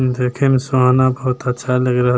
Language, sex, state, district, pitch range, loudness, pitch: Maithili, male, Bihar, Begusarai, 125-130 Hz, -16 LUFS, 125 Hz